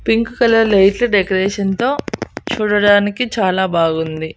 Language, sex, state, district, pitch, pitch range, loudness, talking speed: Telugu, female, Andhra Pradesh, Annamaya, 205 Hz, 190-230 Hz, -15 LUFS, 110 wpm